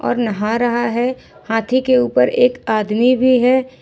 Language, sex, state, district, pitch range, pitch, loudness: Hindi, female, Jharkhand, Ranchi, 225-255 Hz, 245 Hz, -16 LUFS